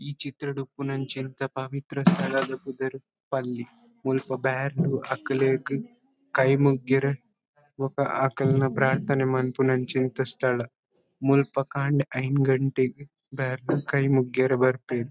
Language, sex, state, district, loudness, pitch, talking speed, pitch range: Tulu, male, Karnataka, Dakshina Kannada, -26 LUFS, 135 Hz, 100 wpm, 130-140 Hz